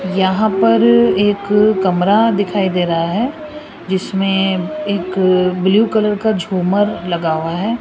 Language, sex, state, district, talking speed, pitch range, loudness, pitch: Hindi, female, Rajasthan, Jaipur, 130 wpm, 180-210 Hz, -15 LUFS, 195 Hz